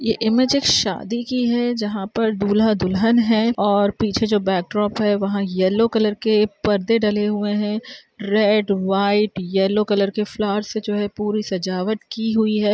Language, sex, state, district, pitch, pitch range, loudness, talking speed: Hindi, female, Bihar, Araria, 210 Hz, 200-220 Hz, -19 LUFS, 180 wpm